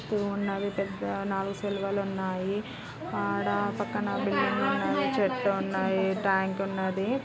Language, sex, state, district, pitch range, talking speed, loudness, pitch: Telugu, female, Andhra Pradesh, Srikakulam, 190-200 Hz, 125 wpm, -29 LUFS, 195 Hz